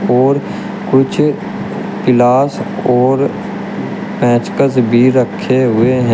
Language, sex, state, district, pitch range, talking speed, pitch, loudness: Hindi, male, Uttar Pradesh, Shamli, 125-140 Hz, 90 wpm, 130 Hz, -13 LUFS